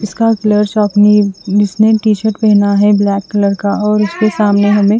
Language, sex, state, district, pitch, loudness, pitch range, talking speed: Hindi, female, Chandigarh, Chandigarh, 210 Hz, -11 LUFS, 205-215 Hz, 155 wpm